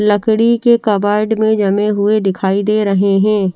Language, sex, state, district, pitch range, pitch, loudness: Hindi, female, Bihar, Katihar, 200-220 Hz, 210 Hz, -13 LUFS